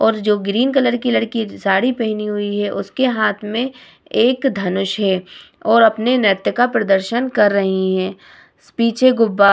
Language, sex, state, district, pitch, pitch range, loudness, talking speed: Hindi, female, Bihar, Vaishali, 215 Hz, 200-240 Hz, -17 LUFS, 175 wpm